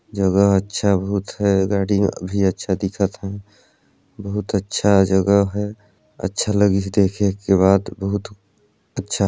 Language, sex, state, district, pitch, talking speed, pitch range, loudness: Chhattisgarhi, male, Chhattisgarh, Balrampur, 100 Hz, 130 wpm, 95-100 Hz, -19 LUFS